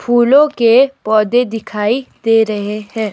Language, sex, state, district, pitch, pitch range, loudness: Hindi, female, Himachal Pradesh, Shimla, 225 Hz, 215-245 Hz, -13 LUFS